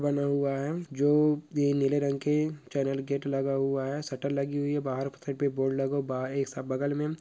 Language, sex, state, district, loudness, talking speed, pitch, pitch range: Hindi, female, Bihar, Purnia, -29 LUFS, 200 wpm, 140 Hz, 135-145 Hz